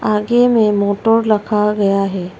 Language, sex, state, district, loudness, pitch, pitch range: Hindi, female, Arunachal Pradesh, Longding, -14 LUFS, 210 Hz, 200-225 Hz